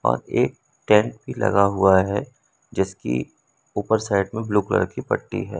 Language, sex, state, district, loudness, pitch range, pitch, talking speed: Hindi, male, Madhya Pradesh, Umaria, -22 LUFS, 95-105 Hz, 100 Hz, 170 wpm